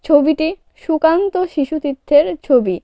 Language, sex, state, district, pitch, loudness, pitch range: Bengali, female, West Bengal, Cooch Behar, 310 Hz, -16 LUFS, 285-330 Hz